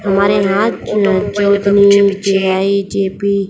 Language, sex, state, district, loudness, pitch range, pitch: Hindi, female, Haryana, Jhajjar, -13 LUFS, 195-200 Hz, 200 Hz